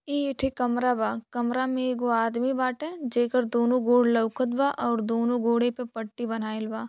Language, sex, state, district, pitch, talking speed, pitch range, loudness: Bhojpuri, female, Uttar Pradesh, Deoria, 245 Hz, 185 wpm, 235-255 Hz, -26 LUFS